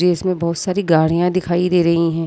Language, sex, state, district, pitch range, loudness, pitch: Hindi, female, Bihar, Purnia, 170-180 Hz, -17 LUFS, 175 Hz